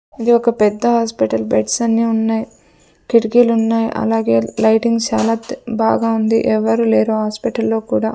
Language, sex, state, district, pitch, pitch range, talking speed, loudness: Telugu, female, Andhra Pradesh, Sri Satya Sai, 225 Hz, 210-230 Hz, 130 wpm, -16 LUFS